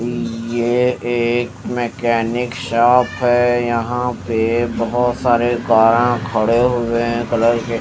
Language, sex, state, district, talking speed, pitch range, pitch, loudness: Hindi, male, Chandigarh, Chandigarh, 125 wpm, 115-120 Hz, 120 Hz, -17 LUFS